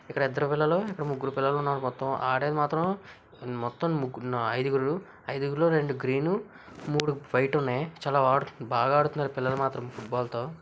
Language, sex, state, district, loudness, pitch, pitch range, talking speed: Telugu, male, Andhra Pradesh, Visakhapatnam, -28 LUFS, 140 Hz, 130-150 Hz, 145 wpm